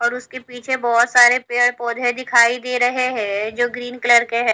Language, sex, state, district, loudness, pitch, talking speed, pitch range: Hindi, female, Haryana, Charkhi Dadri, -17 LUFS, 245 Hz, 210 wpm, 235-250 Hz